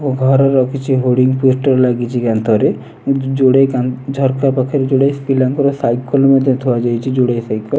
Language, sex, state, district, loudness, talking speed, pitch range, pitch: Odia, male, Odisha, Nuapada, -14 LUFS, 115 wpm, 125-135 Hz, 130 Hz